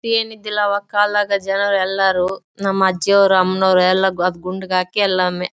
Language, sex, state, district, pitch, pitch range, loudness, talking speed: Kannada, female, Karnataka, Bellary, 195 Hz, 185-200 Hz, -17 LUFS, 150 wpm